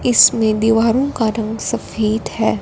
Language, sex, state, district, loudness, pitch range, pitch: Hindi, female, Punjab, Fazilka, -16 LUFS, 215-230 Hz, 225 Hz